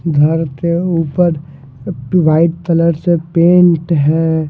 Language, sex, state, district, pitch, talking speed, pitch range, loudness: Hindi, male, Punjab, Fazilka, 165 Hz, 105 wpm, 155-170 Hz, -13 LUFS